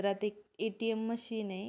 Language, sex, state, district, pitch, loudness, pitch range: Marathi, female, Maharashtra, Pune, 220 Hz, -37 LUFS, 205-225 Hz